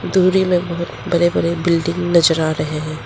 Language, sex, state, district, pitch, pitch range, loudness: Hindi, female, Arunachal Pradesh, Lower Dibang Valley, 170 Hz, 160-175 Hz, -17 LUFS